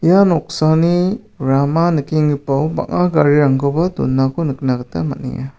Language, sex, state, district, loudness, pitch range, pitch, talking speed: Garo, male, Meghalaya, South Garo Hills, -16 LUFS, 135-170 Hz, 155 Hz, 105 wpm